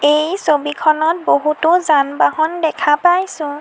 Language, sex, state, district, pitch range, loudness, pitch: Assamese, female, Assam, Sonitpur, 295-340 Hz, -15 LUFS, 310 Hz